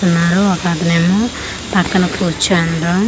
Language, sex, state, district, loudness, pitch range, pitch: Telugu, female, Andhra Pradesh, Manyam, -15 LUFS, 170-190 Hz, 175 Hz